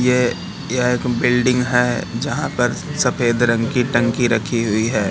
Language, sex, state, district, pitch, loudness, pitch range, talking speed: Hindi, male, Madhya Pradesh, Katni, 125 Hz, -18 LUFS, 120-125 Hz, 165 wpm